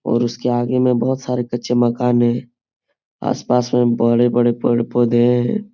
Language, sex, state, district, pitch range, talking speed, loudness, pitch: Hindi, male, Bihar, Supaul, 120-125 Hz, 145 wpm, -17 LUFS, 120 Hz